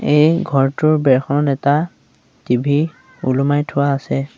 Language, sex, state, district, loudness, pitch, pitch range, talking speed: Assamese, male, Assam, Sonitpur, -17 LUFS, 140 Hz, 135-155 Hz, 110 wpm